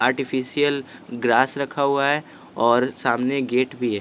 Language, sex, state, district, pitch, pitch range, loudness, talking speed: Hindi, male, Bihar, West Champaran, 130 Hz, 125-140 Hz, -21 LUFS, 150 wpm